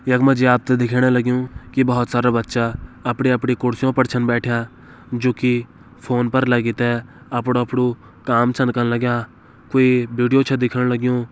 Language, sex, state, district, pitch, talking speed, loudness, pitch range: Kumaoni, male, Uttarakhand, Uttarkashi, 125 Hz, 170 wpm, -19 LUFS, 120-125 Hz